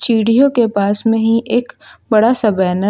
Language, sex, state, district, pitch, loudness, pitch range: Hindi, female, Uttar Pradesh, Lucknow, 225 Hz, -14 LUFS, 205-235 Hz